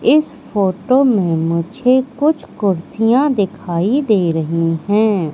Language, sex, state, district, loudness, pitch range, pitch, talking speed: Hindi, female, Madhya Pradesh, Katni, -16 LUFS, 170-255 Hz, 205 Hz, 100 wpm